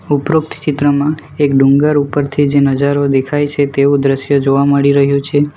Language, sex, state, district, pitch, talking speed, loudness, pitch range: Gujarati, male, Gujarat, Valsad, 140 Hz, 160 wpm, -13 LUFS, 140-145 Hz